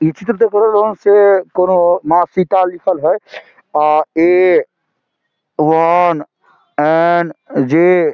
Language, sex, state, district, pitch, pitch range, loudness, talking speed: Maithili, male, Bihar, Samastipur, 175 Hz, 160-190 Hz, -13 LUFS, 105 wpm